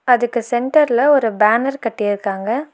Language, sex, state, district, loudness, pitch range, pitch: Tamil, female, Tamil Nadu, Nilgiris, -16 LUFS, 215-265 Hz, 240 Hz